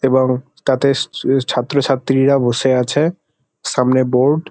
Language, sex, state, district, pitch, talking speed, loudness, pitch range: Bengali, male, West Bengal, Kolkata, 135 Hz, 105 wpm, -16 LUFS, 130-140 Hz